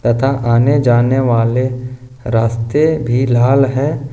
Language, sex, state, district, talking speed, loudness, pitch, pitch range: Hindi, male, Jharkhand, Ranchi, 115 wpm, -14 LUFS, 125 Hz, 120-135 Hz